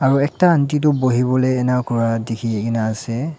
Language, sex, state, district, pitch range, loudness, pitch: Nagamese, male, Nagaland, Dimapur, 115-140 Hz, -18 LUFS, 125 Hz